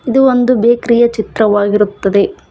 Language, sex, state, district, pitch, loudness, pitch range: Kannada, female, Karnataka, Bangalore, 230 Hz, -12 LUFS, 205-240 Hz